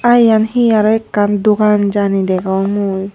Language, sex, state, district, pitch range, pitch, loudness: Chakma, female, Tripura, Unakoti, 195-220 Hz, 205 Hz, -13 LUFS